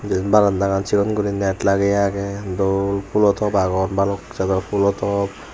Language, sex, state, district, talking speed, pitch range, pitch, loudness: Chakma, male, Tripura, Unakoti, 165 wpm, 95-100 Hz, 100 Hz, -19 LUFS